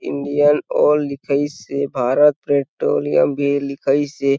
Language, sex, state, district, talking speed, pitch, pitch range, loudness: Chhattisgarhi, male, Chhattisgarh, Sarguja, 125 wpm, 140 Hz, 140-145 Hz, -18 LUFS